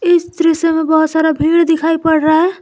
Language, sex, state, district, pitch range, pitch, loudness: Hindi, female, Jharkhand, Garhwa, 315-335 Hz, 325 Hz, -13 LUFS